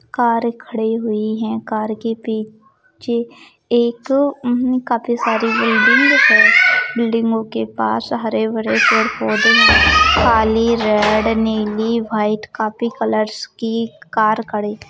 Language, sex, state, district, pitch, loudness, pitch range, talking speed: Hindi, female, Maharashtra, Pune, 225 Hz, -15 LUFS, 215-235 Hz, 110 wpm